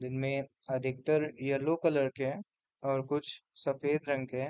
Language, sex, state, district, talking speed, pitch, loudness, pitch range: Hindi, male, Uttar Pradesh, Deoria, 160 wpm, 140 Hz, -33 LUFS, 135-150 Hz